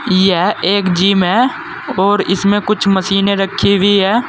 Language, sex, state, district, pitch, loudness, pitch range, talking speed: Hindi, male, Uttar Pradesh, Saharanpur, 195 Hz, -13 LUFS, 190-205 Hz, 155 wpm